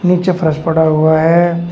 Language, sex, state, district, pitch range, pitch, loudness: Hindi, male, Uttar Pradesh, Shamli, 160-175 Hz, 165 Hz, -12 LUFS